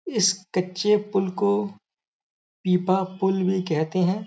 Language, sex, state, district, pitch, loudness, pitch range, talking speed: Hindi, male, Uttar Pradesh, Gorakhpur, 190 Hz, -24 LUFS, 185-205 Hz, 125 wpm